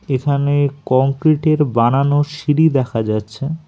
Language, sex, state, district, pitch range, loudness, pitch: Bengali, male, West Bengal, Alipurduar, 130-150 Hz, -16 LUFS, 140 Hz